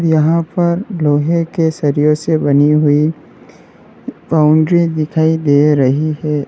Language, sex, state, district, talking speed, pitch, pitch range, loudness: Hindi, male, Uttar Pradesh, Lalitpur, 120 wpm, 155 Hz, 150-165 Hz, -13 LUFS